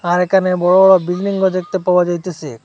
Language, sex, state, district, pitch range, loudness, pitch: Bengali, male, Assam, Hailakandi, 175-190 Hz, -14 LUFS, 180 Hz